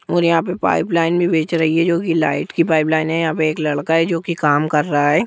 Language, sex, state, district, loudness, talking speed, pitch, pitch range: Hindi, female, Jharkhand, Jamtara, -17 LUFS, 305 wpm, 165 Hz, 155-170 Hz